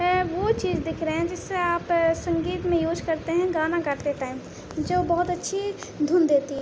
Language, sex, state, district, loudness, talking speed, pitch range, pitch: Hindi, female, Uttar Pradesh, Budaun, -25 LUFS, 200 wpm, 315-360 Hz, 340 Hz